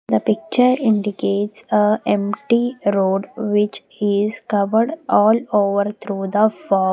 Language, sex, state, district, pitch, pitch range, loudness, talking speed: English, female, Maharashtra, Gondia, 210 Hz, 200-225 Hz, -18 LUFS, 120 wpm